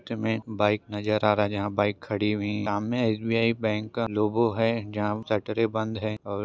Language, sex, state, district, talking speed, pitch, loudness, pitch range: Hindi, male, Maharashtra, Chandrapur, 215 wpm, 110 Hz, -27 LUFS, 105-110 Hz